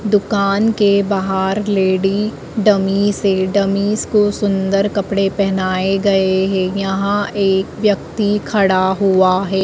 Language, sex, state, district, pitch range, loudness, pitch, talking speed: Hindi, female, Madhya Pradesh, Dhar, 190-205 Hz, -16 LUFS, 195 Hz, 120 wpm